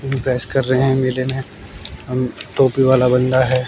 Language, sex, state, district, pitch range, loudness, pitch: Hindi, male, Haryana, Jhajjar, 125-130 Hz, -17 LUFS, 130 Hz